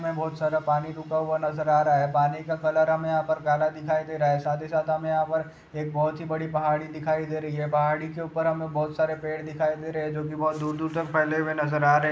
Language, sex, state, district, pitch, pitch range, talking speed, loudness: Hindi, male, Andhra Pradesh, Chittoor, 155 Hz, 150-160 Hz, 255 wpm, -26 LUFS